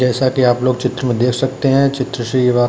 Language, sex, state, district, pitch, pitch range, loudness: Hindi, male, Uttar Pradesh, Budaun, 125 Hz, 125-130 Hz, -16 LUFS